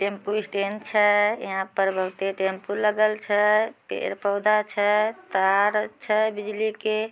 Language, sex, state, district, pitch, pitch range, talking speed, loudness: Magahi, female, Bihar, Samastipur, 210 Hz, 200-215 Hz, 125 wpm, -24 LUFS